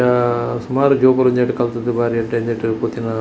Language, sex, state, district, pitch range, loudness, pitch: Tulu, male, Karnataka, Dakshina Kannada, 115-125 Hz, -17 LUFS, 120 Hz